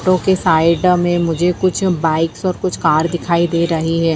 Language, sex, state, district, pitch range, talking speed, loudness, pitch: Hindi, female, Bihar, Darbhanga, 165-185 Hz, 215 wpm, -15 LUFS, 170 Hz